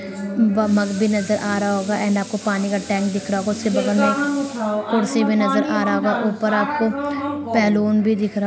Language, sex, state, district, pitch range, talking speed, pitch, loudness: Hindi, female, Bihar, Samastipur, 205-225 Hz, 220 wpm, 210 Hz, -20 LUFS